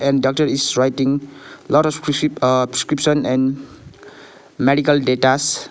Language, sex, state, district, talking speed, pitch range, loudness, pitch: English, male, Sikkim, Gangtok, 125 wpm, 130-150 Hz, -17 LUFS, 140 Hz